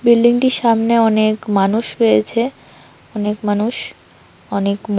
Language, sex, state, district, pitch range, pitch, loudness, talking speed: Bengali, female, Tripura, West Tripura, 205-235 Hz, 220 Hz, -16 LUFS, 110 wpm